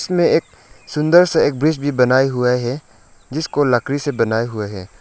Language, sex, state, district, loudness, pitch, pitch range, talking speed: Hindi, male, Arunachal Pradesh, Lower Dibang Valley, -17 LUFS, 130 Hz, 115-150 Hz, 190 wpm